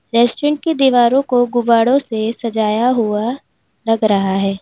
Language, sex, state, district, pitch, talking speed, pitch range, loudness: Hindi, female, Uttar Pradesh, Lalitpur, 235 Hz, 145 wpm, 220-250 Hz, -15 LUFS